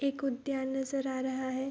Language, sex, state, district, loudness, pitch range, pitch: Hindi, female, Bihar, Vaishali, -34 LUFS, 260-275 Hz, 265 Hz